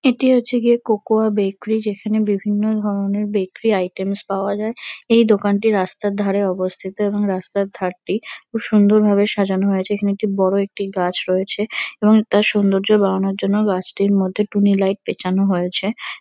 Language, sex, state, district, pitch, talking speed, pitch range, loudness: Bengali, female, West Bengal, Kolkata, 205 Hz, 150 wpm, 195-215 Hz, -18 LUFS